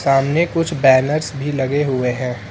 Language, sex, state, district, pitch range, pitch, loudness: Hindi, male, Uttar Pradesh, Lucknow, 130-150 Hz, 135 Hz, -17 LUFS